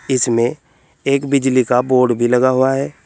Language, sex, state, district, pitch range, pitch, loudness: Hindi, male, Uttar Pradesh, Saharanpur, 125-135 Hz, 130 Hz, -15 LUFS